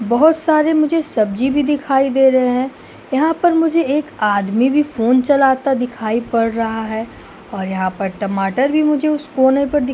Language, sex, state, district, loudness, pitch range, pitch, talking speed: Hindi, female, Uttar Pradesh, Hamirpur, -16 LUFS, 225-295 Hz, 265 Hz, 185 wpm